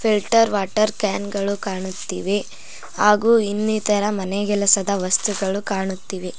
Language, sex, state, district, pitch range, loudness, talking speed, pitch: Kannada, female, Karnataka, Koppal, 195-210 Hz, -20 LUFS, 95 wpm, 200 Hz